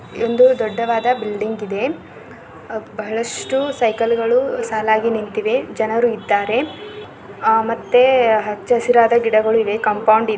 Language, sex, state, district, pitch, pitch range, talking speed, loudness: Kannada, female, Karnataka, Belgaum, 225 Hz, 215-240 Hz, 200 wpm, -17 LUFS